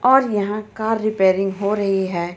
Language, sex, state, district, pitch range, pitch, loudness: Hindi, female, Jharkhand, Ranchi, 195-215 Hz, 205 Hz, -19 LUFS